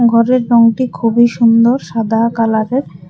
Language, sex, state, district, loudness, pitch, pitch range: Bengali, female, Tripura, West Tripura, -12 LUFS, 230 Hz, 230-240 Hz